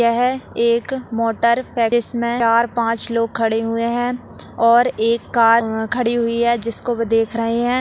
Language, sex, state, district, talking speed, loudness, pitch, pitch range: Hindi, female, Uttarakhand, Tehri Garhwal, 170 wpm, -17 LUFS, 235 Hz, 230-240 Hz